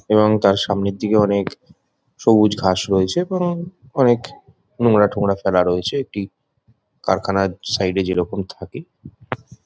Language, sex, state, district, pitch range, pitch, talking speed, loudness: Bengali, male, West Bengal, Jhargram, 95-120 Hz, 105 Hz, 125 wpm, -19 LUFS